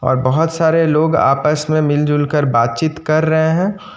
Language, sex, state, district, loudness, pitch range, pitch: Hindi, male, Jharkhand, Ranchi, -15 LUFS, 145-160 Hz, 155 Hz